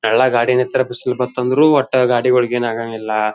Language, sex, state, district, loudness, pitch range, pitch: Kannada, male, Karnataka, Dharwad, -16 LUFS, 115-125 Hz, 125 Hz